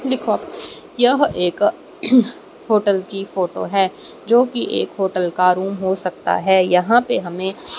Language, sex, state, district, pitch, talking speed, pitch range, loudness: Hindi, female, Haryana, Rohtak, 195 Hz, 140 wpm, 185-245 Hz, -18 LUFS